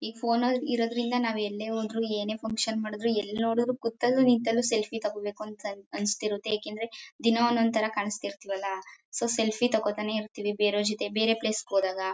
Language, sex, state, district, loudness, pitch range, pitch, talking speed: Kannada, female, Karnataka, Mysore, -28 LUFS, 210-230 Hz, 220 Hz, 165 wpm